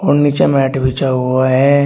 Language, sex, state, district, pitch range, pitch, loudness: Hindi, male, Uttar Pradesh, Shamli, 130-140 Hz, 135 Hz, -13 LUFS